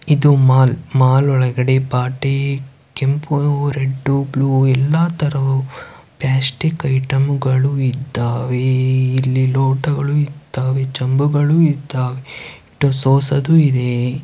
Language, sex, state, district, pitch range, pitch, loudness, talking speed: Kannada, male, Karnataka, Chamarajanagar, 130-140 Hz, 135 Hz, -16 LUFS, 90 wpm